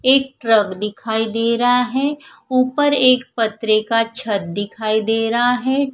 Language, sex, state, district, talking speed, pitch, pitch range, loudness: Hindi, female, Punjab, Fazilka, 150 wpm, 230 Hz, 220-255 Hz, -18 LUFS